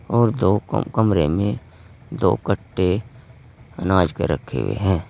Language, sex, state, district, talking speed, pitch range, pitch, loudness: Hindi, male, Uttar Pradesh, Saharanpur, 140 wpm, 90-120 Hz, 100 Hz, -21 LUFS